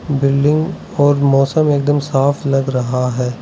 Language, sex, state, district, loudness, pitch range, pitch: Hindi, male, Arunachal Pradesh, Lower Dibang Valley, -15 LUFS, 135-145 Hz, 140 Hz